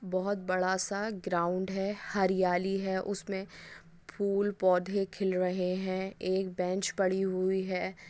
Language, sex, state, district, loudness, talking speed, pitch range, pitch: Hindi, female, Andhra Pradesh, Chittoor, -31 LUFS, 135 wpm, 185-195 Hz, 190 Hz